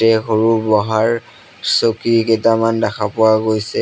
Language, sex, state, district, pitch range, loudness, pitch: Assamese, male, Assam, Sonitpur, 110-115 Hz, -15 LUFS, 110 Hz